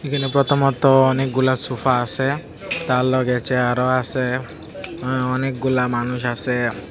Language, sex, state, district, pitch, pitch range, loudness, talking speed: Bengali, male, Tripura, Dhalai, 130 Hz, 125-135 Hz, -20 LUFS, 115 wpm